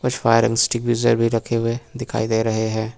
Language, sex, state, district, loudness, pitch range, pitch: Hindi, male, Uttar Pradesh, Lucknow, -20 LUFS, 110-120 Hz, 115 Hz